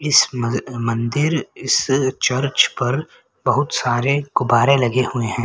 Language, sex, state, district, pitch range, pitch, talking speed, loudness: Hindi, male, Haryana, Rohtak, 120-140 Hz, 130 Hz, 130 wpm, -18 LUFS